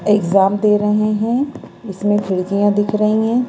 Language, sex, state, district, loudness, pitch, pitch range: Hindi, female, Madhya Pradesh, Bhopal, -16 LUFS, 210 Hz, 200-215 Hz